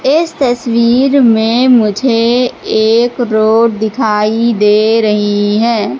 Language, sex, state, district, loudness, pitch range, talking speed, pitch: Hindi, female, Madhya Pradesh, Katni, -11 LUFS, 215-245 Hz, 100 wpm, 230 Hz